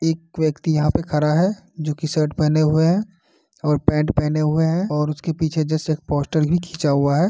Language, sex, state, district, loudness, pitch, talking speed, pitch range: Hindi, male, Bihar, Kishanganj, -20 LUFS, 155 Hz, 220 wpm, 150-165 Hz